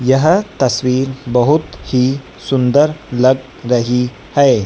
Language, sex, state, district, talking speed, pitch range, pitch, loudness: Hindi, female, Madhya Pradesh, Dhar, 105 wpm, 125-140 Hz, 130 Hz, -15 LUFS